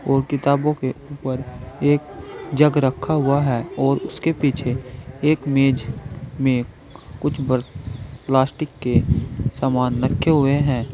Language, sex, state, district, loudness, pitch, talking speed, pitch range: Hindi, male, Uttar Pradesh, Saharanpur, -20 LUFS, 135 Hz, 125 wpm, 130-145 Hz